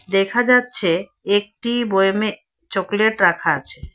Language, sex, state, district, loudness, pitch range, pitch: Bengali, female, West Bengal, Alipurduar, -18 LUFS, 195-235 Hz, 205 Hz